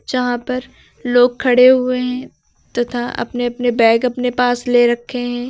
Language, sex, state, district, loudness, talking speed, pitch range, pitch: Hindi, female, Uttar Pradesh, Lucknow, -16 LUFS, 165 wpm, 240-250 Hz, 245 Hz